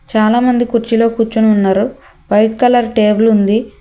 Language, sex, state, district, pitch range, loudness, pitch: Telugu, female, Telangana, Hyderabad, 215-240 Hz, -12 LUFS, 225 Hz